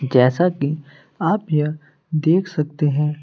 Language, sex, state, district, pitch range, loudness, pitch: Hindi, male, Bihar, Kaimur, 145-165 Hz, -20 LUFS, 150 Hz